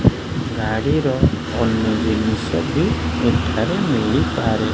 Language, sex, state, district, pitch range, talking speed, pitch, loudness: Odia, male, Odisha, Khordha, 80-110 Hz, 100 wpm, 110 Hz, -19 LUFS